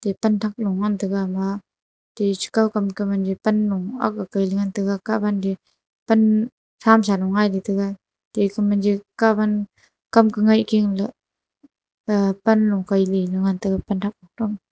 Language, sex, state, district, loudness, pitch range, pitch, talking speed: Wancho, female, Arunachal Pradesh, Longding, -21 LUFS, 195-215 Hz, 205 Hz, 90 wpm